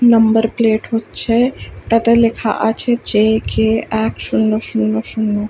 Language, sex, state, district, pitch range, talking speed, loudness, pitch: Bengali, female, West Bengal, Kolkata, 205-230 Hz, 140 wpm, -15 LUFS, 220 Hz